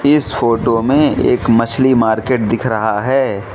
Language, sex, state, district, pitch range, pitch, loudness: Hindi, male, Mizoram, Aizawl, 110-130 Hz, 115 Hz, -14 LUFS